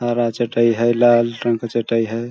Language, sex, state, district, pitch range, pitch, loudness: Hindi, male, Chhattisgarh, Balrampur, 115-120 Hz, 120 Hz, -18 LUFS